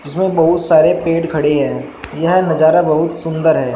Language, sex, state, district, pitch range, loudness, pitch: Hindi, male, Uttar Pradesh, Shamli, 155-165 Hz, -14 LUFS, 160 Hz